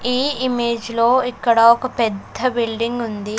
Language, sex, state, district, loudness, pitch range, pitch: Telugu, female, Andhra Pradesh, Sri Satya Sai, -18 LUFS, 230-250 Hz, 235 Hz